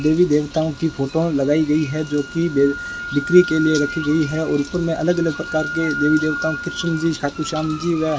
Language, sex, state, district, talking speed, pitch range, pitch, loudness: Hindi, male, Rajasthan, Bikaner, 225 wpm, 150-165 Hz, 160 Hz, -19 LUFS